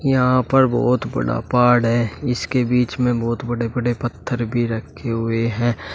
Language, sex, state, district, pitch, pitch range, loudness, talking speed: Hindi, male, Uttar Pradesh, Shamli, 120 Hz, 115-125 Hz, -19 LUFS, 170 wpm